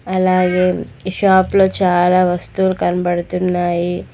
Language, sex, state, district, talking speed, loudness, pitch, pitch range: Telugu, female, Telangana, Mahabubabad, 70 wpm, -15 LUFS, 180 Hz, 175-190 Hz